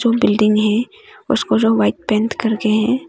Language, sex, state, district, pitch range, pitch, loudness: Hindi, female, Arunachal Pradesh, Longding, 210-230 Hz, 215 Hz, -16 LUFS